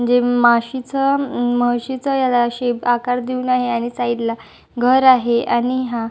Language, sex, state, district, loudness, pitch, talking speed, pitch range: Marathi, male, Maharashtra, Chandrapur, -17 LUFS, 245 Hz, 165 wpm, 240-255 Hz